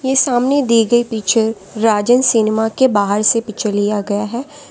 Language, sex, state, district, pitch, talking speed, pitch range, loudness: Hindi, female, Gujarat, Valsad, 225 Hz, 180 wpm, 215-245 Hz, -15 LUFS